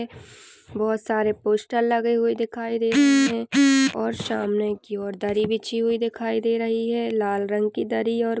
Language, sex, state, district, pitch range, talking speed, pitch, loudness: Hindi, female, Chhattisgarh, Balrampur, 210-235 Hz, 180 wpm, 230 Hz, -23 LUFS